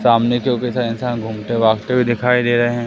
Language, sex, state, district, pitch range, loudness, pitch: Hindi, male, Madhya Pradesh, Umaria, 115-125 Hz, -17 LUFS, 120 Hz